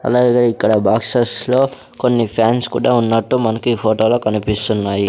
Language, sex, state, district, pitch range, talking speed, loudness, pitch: Telugu, male, Andhra Pradesh, Sri Satya Sai, 110-125 Hz, 140 wpm, -15 LUFS, 115 Hz